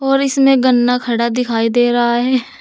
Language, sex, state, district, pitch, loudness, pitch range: Hindi, female, Uttar Pradesh, Saharanpur, 245 Hz, -14 LUFS, 240-270 Hz